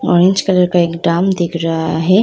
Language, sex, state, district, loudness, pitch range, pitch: Hindi, female, Uttar Pradesh, Muzaffarnagar, -14 LUFS, 170-185 Hz, 175 Hz